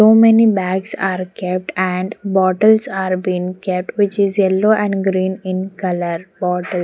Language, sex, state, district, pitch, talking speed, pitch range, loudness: English, female, Haryana, Jhajjar, 190 Hz, 165 wpm, 185-200 Hz, -17 LUFS